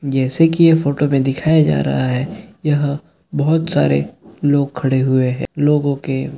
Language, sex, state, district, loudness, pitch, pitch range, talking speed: Hindi, male, Bihar, Gopalganj, -16 LUFS, 140 Hz, 130-155 Hz, 170 wpm